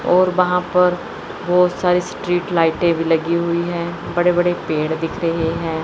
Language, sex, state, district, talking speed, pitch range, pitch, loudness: Hindi, male, Chandigarh, Chandigarh, 175 wpm, 165-180 Hz, 175 Hz, -18 LUFS